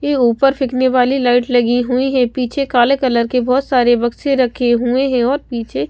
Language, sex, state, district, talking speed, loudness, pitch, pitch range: Hindi, female, Bihar, West Champaran, 215 wpm, -15 LUFS, 250 Hz, 240-265 Hz